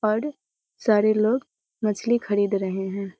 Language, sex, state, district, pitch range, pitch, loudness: Hindi, female, Bihar, Muzaffarpur, 200-235 Hz, 215 Hz, -24 LUFS